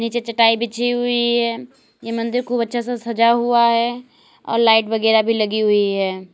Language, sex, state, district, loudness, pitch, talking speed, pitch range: Hindi, female, Uttar Pradesh, Lalitpur, -18 LUFS, 230 Hz, 190 wpm, 225-240 Hz